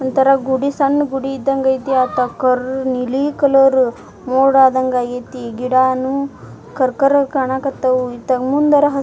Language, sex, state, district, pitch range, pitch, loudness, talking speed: Kannada, female, Karnataka, Dharwad, 255-275 Hz, 265 Hz, -16 LUFS, 135 wpm